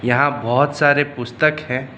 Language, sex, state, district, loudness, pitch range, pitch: Hindi, male, West Bengal, Darjeeling, -17 LUFS, 125-145 Hz, 145 Hz